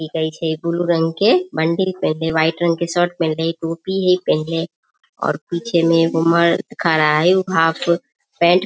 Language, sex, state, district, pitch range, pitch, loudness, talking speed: Maithili, female, Bihar, Samastipur, 165-175 Hz, 170 Hz, -18 LUFS, 185 wpm